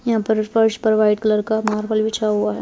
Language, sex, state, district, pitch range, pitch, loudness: Hindi, female, Chhattisgarh, Rajnandgaon, 210-220 Hz, 215 Hz, -18 LUFS